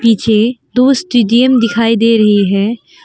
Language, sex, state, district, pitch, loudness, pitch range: Hindi, female, Arunachal Pradesh, Longding, 230 Hz, -11 LUFS, 220-250 Hz